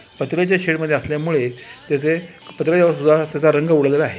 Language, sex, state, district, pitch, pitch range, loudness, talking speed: Marathi, male, Maharashtra, Pune, 155 Hz, 145-165 Hz, -18 LUFS, 130 wpm